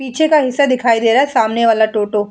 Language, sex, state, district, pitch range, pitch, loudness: Hindi, female, Uttar Pradesh, Muzaffarnagar, 220-270 Hz, 235 Hz, -13 LUFS